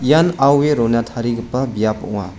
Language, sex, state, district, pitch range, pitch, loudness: Garo, male, Meghalaya, West Garo Hills, 115-140 Hz, 120 Hz, -17 LUFS